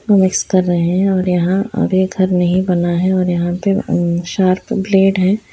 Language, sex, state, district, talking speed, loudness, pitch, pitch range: Hindi, female, Bihar, Muzaffarpur, 185 wpm, -15 LUFS, 185 Hz, 180-195 Hz